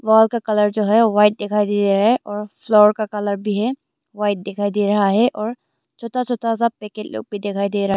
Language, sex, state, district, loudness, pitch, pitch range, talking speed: Hindi, female, Arunachal Pradesh, Longding, -18 LUFS, 210 Hz, 205-225 Hz, 235 wpm